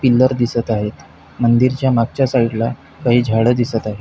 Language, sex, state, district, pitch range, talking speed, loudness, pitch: Marathi, male, Maharashtra, Pune, 110-125 Hz, 150 wpm, -16 LUFS, 120 Hz